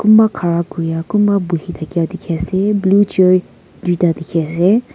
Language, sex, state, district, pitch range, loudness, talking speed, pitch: Nagamese, female, Nagaland, Kohima, 170-200 Hz, -15 LUFS, 155 wpm, 180 Hz